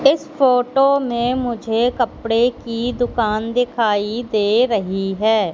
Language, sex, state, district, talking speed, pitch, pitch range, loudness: Hindi, female, Madhya Pradesh, Katni, 120 wpm, 235 Hz, 220-245 Hz, -18 LUFS